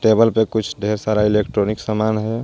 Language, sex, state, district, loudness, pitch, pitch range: Hindi, male, Jharkhand, Garhwa, -18 LUFS, 110 Hz, 105-110 Hz